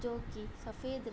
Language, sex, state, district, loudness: Hindi, female, Uttar Pradesh, Budaun, -43 LUFS